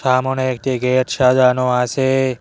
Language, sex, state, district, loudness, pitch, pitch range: Bengali, male, West Bengal, Cooch Behar, -16 LUFS, 130 Hz, 125-130 Hz